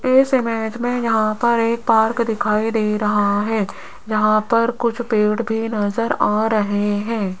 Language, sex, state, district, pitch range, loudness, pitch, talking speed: Hindi, female, Rajasthan, Jaipur, 210-230 Hz, -19 LUFS, 220 Hz, 160 wpm